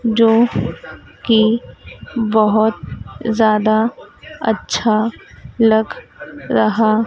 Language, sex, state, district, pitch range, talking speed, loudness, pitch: Hindi, female, Madhya Pradesh, Dhar, 215-230 Hz, 60 wpm, -16 LUFS, 220 Hz